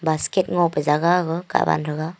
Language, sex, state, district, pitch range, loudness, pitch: Wancho, female, Arunachal Pradesh, Longding, 155-175 Hz, -21 LUFS, 165 Hz